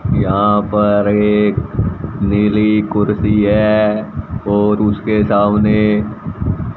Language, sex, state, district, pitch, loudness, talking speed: Hindi, male, Haryana, Jhajjar, 105 Hz, -14 LUFS, 80 wpm